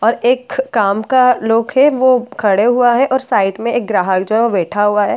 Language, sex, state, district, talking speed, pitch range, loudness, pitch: Hindi, female, Bihar, Katihar, 265 wpm, 205-255 Hz, -14 LUFS, 235 Hz